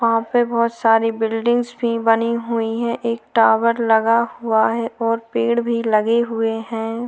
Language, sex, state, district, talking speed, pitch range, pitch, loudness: Hindi, female, Maharashtra, Aurangabad, 170 wpm, 225-235 Hz, 230 Hz, -18 LUFS